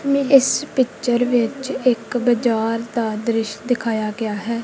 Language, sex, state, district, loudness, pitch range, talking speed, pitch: Punjabi, female, Punjab, Kapurthala, -19 LUFS, 225-260 Hz, 130 wpm, 235 Hz